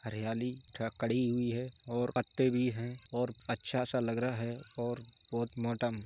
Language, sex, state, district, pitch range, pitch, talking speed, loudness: Hindi, male, Uttar Pradesh, Hamirpur, 115-125 Hz, 120 Hz, 190 wpm, -35 LUFS